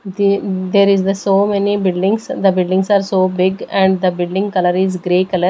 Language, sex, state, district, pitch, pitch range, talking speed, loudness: English, female, Maharashtra, Gondia, 190 Hz, 185-200 Hz, 205 wpm, -15 LUFS